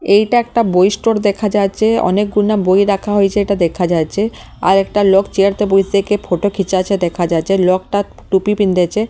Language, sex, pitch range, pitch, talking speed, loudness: Bengali, female, 190-210 Hz, 200 Hz, 180 wpm, -14 LUFS